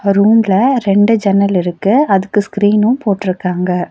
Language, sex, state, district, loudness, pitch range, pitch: Tamil, female, Tamil Nadu, Nilgiris, -13 LUFS, 190-210 Hz, 200 Hz